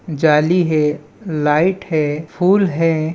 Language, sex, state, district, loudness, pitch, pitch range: Hindi, female, Chhattisgarh, Balrampur, -16 LUFS, 160 Hz, 150-180 Hz